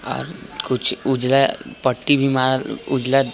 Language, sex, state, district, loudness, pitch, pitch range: Hindi, male, Bihar, East Champaran, -18 LUFS, 130 Hz, 130-135 Hz